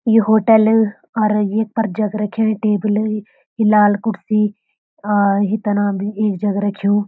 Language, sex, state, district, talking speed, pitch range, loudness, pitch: Garhwali, female, Uttarakhand, Uttarkashi, 160 wpm, 205-220 Hz, -17 LUFS, 210 Hz